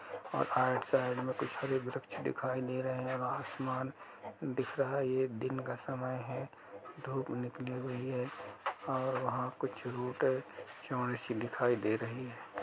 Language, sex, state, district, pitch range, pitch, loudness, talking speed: Hindi, male, Uttar Pradesh, Jalaun, 125-130 Hz, 130 Hz, -37 LUFS, 160 wpm